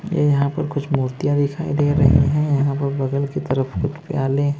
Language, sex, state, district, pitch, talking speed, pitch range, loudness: Hindi, male, Maharashtra, Mumbai Suburban, 145 Hz, 210 wpm, 140-145 Hz, -20 LUFS